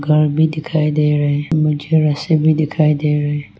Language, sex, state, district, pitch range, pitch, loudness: Hindi, female, Arunachal Pradesh, Longding, 145-155 Hz, 150 Hz, -16 LUFS